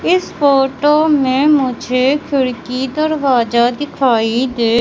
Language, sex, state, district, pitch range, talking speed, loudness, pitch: Hindi, male, Madhya Pradesh, Katni, 250-290 Hz, 100 wpm, -14 LUFS, 265 Hz